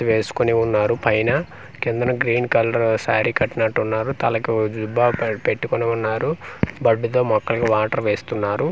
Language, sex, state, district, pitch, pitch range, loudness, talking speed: Telugu, male, Andhra Pradesh, Manyam, 115 Hz, 110-120 Hz, -20 LUFS, 125 wpm